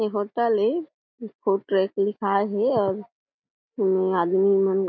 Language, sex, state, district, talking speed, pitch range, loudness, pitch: Chhattisgarhi, female, Chhattisgarh, Jashpur, 120 wpm, 195-215 Hz, -23 LUFS, 200 Hz